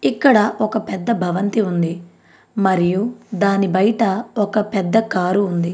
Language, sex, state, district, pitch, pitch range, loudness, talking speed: Telugu, female, Andhra Pradesh, Anantapur, 200 Hz, 185-220 Hz, -18 LUFS, 125 wpm